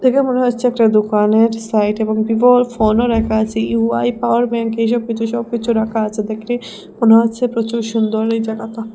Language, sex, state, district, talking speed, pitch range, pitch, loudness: Bengali, female, Assam, Hailakandi, 180 wpm, 220-235 Hz, 225 Hz, -16 LUFS